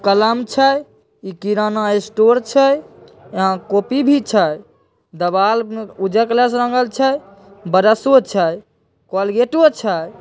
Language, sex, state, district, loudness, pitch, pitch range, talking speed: Maithili, female, Bihar, Begusarai, -16 LUFS, 215 Hz, 195-250 Hz, 120 wpm